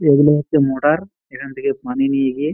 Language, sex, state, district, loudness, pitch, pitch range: Bengali, male, West Bengal, Dakshin Dinajpur, -17 LUFS, 140 Hz, 135-150 Hz